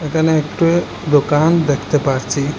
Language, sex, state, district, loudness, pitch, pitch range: Bengali, male, Assam, Hailakandi, -16 LUFS, 150 Hz, 145-160 Hz